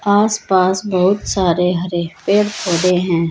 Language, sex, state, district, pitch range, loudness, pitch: Hindi, female, Uttar Pradesh, Saharanpur, 175-205 Hz, -16 LUFS, 185 Hz